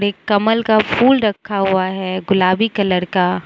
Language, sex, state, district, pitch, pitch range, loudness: Hindi, female, Mizoram, Aizawl, 200 Hz, 185-215 Hz, -16 LUFS